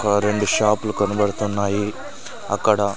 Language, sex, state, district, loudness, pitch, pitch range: Telugu, male, Andhra Pradesh, Sri Satya Sai, -21 LUFS, 105 Hz, 100-105 Hz